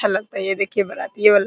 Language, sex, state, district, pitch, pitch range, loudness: Hindi, female, Bihar, Araria, 200 Hz, 195-210 Hz, -21 LUFS